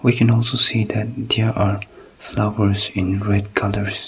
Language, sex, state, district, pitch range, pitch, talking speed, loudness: English, male, Nagaland, Kohima, 100-115 Hz, 105 Hz, 160 wpm, -19 LUFS